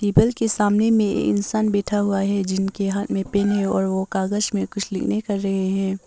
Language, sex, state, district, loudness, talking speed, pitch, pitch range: Hindi, female, Arunachal Pradesh, Papum Pare, -21 LUFS, 215 wpm, 200 Hz, 195-205 Hz